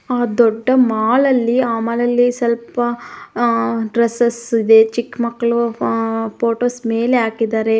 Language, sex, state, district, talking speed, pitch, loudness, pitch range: Kannada, female, Karnataka, Mysore, 130 wpm, 235 Hz, -16 LUFS, 225-240 Hz